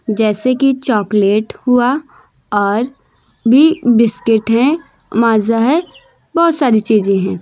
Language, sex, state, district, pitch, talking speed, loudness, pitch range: Hindi, female, Uttar Pradesh, Lucknow, 230 Hz, 115 wpm, -13 LUFS, 215-270 Hz